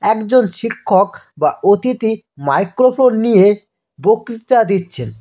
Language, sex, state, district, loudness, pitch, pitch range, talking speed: Bengali, male, West Bengal, Cooch Behar, -15 LUFS, 215 Hz, 195-235 Hz, 90 wpm